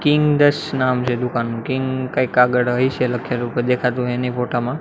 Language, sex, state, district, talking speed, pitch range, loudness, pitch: Gujarati, male, Gujarat, Gandhinagar, 185 wpm, 125-130 Hz, -19 LUFS, 125 Hz